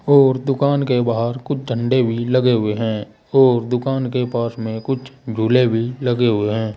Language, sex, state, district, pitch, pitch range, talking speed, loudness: Hindi, male, Uttar Pradesh, Saharanpur, 120 Hz, 115-130 Hz, 185 wpm, -18 LUFS